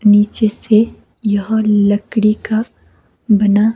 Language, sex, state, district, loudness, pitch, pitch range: Hindi, female, Himachal Pradesh, Shimla, -15 LUFS, 215 Hz, 205-220 Hz